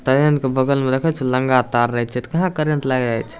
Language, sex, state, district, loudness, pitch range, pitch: Maithili, male, Bihar, Samastipur, -19 LUFS, 125-150 Hz, 130 Hz